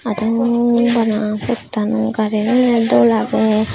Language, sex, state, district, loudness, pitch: Chakma, female, Tripura, Unakoti, -16 LUFS, 215 Hz